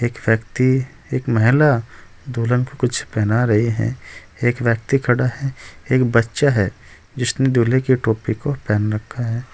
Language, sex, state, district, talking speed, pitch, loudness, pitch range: Hindi, male, Uttar Pradesh, Saharanpur, 150 wpm, 120 Hz, -19 LUFS, 115-130 Hz